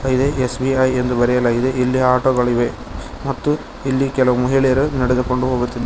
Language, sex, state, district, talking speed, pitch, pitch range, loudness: Kannada, male, Karnataka, Koppal, 155 wpm, 130 Hz, 125-135 Hz, -17 LUFS